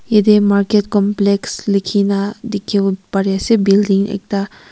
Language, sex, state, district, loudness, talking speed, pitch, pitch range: Nagamese, female, Nagaland, Kohima, -15 LUFS, 115 wpm, 200 Hz, 195-210 Hz